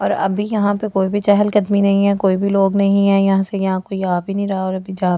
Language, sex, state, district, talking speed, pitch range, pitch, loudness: Hindi, female, Delhi, New Delhi, 325 wpm, 190-200 Hz, 195 Hz, -17 LUFS